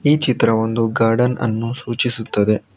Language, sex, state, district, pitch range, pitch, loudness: Kannada, male, Karnataka, Bangalore, 110-125 Hz, 115 Hz, -18 LUFS